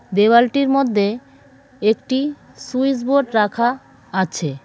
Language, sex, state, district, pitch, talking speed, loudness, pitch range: Bengali, female, West Bengal, Cooch Behar, 240 Hz, 90 wpm, -18 LUFS, 205-270 Hz